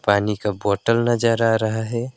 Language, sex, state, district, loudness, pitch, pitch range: Hindi, male, West Bengal, Alipurduar, -20 LUFS, 110 Hz, 105-115 Hz